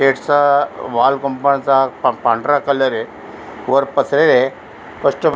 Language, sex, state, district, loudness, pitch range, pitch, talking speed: Marathi, female, Maharashtra, Aurangabad, -15 LUFS, 135-140 Hz, 140 Hz, 100 wpm